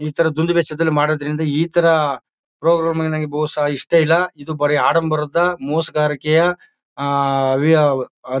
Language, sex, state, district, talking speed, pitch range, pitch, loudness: Kannada, male, Karnataka, Mysore, 130 wpm, 145-165 Hz, 155 Hz, -17 LUFS